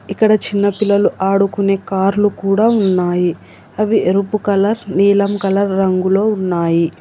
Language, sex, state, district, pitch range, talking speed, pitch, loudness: Telugu, female, Telangana, Hyderabad, 190-205 Hz, 120 wpm, 195 Hz, -15 LUFS